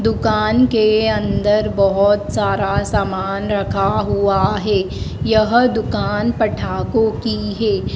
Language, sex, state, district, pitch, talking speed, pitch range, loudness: Hindi, female, Madhya Pradesh, Dhar, 210 Hz, 105 wpm, 200-220 Hz, -17 LUFS